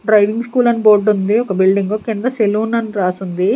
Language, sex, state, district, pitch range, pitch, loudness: Telugu, female, Andhra Pradesh, Sri Satya Sai, 195-225 Hz, 215 Hz, -15 LUFS